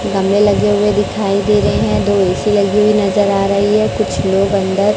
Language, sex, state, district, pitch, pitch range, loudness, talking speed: Hindi, male, Chhattisgarh, Raipur, 200 Hz, 195-205 Hz, -13 LUFS, 215 wpm